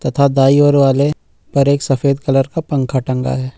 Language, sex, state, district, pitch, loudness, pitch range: Hindi, male, Jharkhand, Ranchi, 135 Hz, -14 LUFS, 130-140 Hz